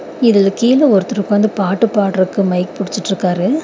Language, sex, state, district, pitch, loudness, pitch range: Tamil, female, Tamil Nadu, Nilgiris, 200 Hz, -14 LUFS, 190-230 Hz